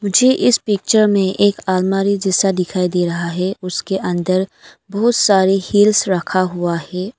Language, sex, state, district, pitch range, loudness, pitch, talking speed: Hindi, female, Arunachal Pradesh, Longding, 180-205 Hz, -16 LUFS, 190 Hz, 160 wpm